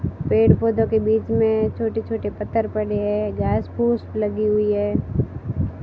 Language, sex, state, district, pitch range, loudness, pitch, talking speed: Hindi, female, Rajasthan, Barmer, 205-225 Hz, -21 LUFS, 215 Hz, 165 wpm